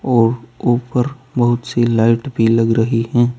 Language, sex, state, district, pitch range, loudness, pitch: Hindi, male, Uttar Pradesh, Saharanpur, 115-125 Hz, -16 LUFS, 120 Hz